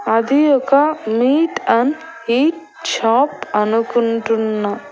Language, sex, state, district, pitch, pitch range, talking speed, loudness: Telugu, female, Andhra Pradesh, Annamaya, 245 Hz, 225-295 Hz, 85 wpm, -16 LUFS